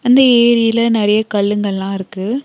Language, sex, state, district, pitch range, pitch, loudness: Tamil, female, Tamil Nadu, Nilgiris, 205-235 Hz, 220 Hz, -14 LUFS